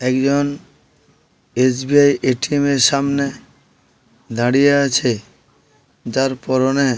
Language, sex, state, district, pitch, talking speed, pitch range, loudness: Bengali, male, West Bengal, Paschim Medinipur, 130 Hz, 85 wpm, 125-140 Hz, -17 LUFS